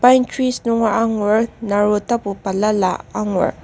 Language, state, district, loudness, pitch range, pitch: Ao, Nagaland, Kohima, -18 LUFS, 205-235 Hz, 215 Hz